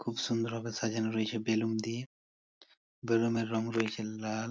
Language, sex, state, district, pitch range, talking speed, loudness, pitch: Bengali, male, West Bengal, Purulia, 110-115 Hz, 160 wpm, -33 LUFS, 115 Hz